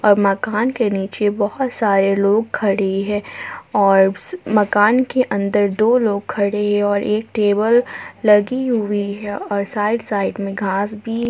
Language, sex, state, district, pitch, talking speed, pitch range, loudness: Hindi, female, Jharkhand, Palamu, 205 Hz, 150 wpm, 200-225 Hz, -17 LUFS